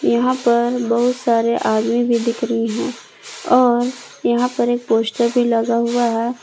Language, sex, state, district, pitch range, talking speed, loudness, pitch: Hindi, female, Jharkhand, Palamu, 235-245 Hz, 170 wpm, -18 LUFS, 235 Hz